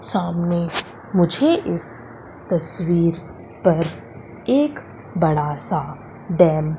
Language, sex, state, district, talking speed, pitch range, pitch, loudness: Hindi, female, Madhya Pradesh, Umaria, 90 wpm, 150-180 Hz, 170 Hz, -20 LUFS